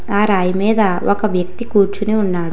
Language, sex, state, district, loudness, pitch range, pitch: Telugu, female, Telangana, Hyderabad, -16 LUFS, 180-215 Hz, 200 Hz